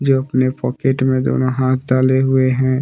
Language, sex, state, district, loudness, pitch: Hindi, male, Jharkhand, Deoghar, -16 LUFS, 130 Hz